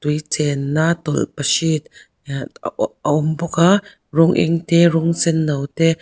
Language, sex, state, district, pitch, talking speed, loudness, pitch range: Mizo, female, Mizoram, Aizawl, 160 Hz, 150 wpm, -18 LUFS, 150-165 Hz